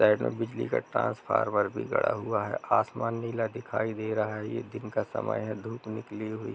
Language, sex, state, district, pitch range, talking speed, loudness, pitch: Hindi, male, Bihar, Sitamarhi, 110-115 Hz, 220 wpm, -30 LUFS, 110 Hz